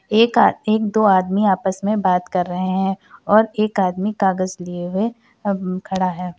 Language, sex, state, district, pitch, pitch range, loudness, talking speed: Hindi, female, Uttar Pradesh, Varanasi, 190 Hz, 185-215 Hz, -19 LUFS, 190 wpm